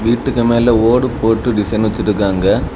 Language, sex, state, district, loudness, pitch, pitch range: Tamil, male, Tamil Nadu, Kanyakumari, -14 LUFS, 115 Hz, 110-120 Hz